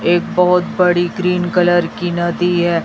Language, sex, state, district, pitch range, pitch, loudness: Hindi, female, Chhattisgarh, Raipur, 175-180 Hz, 175 Hz, -15 LUFS